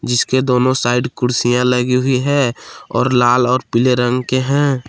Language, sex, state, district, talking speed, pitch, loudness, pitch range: Hindi, male, Jharkhand, Palamu, 170 wpm, 125 Hz, -15 LUFS, 125-130 Hz